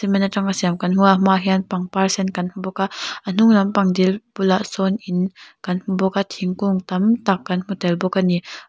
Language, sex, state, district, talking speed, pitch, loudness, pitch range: Mizo, female, Mizoram, Aizawl, 230 wpm, 190 Hz, -19 LUFS, 185-195 Hz